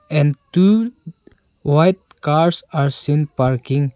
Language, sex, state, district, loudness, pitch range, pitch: English, male, Arunachal Pradesh, Longding, -17 LUFS, 140-175 Hz, 150 Hz